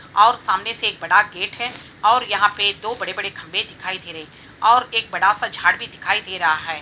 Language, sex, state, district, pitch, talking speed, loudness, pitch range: Hindi, female, Bihar, Saran, 200 Hz, 235 wpm, -19 LUFS, 175-225 Hz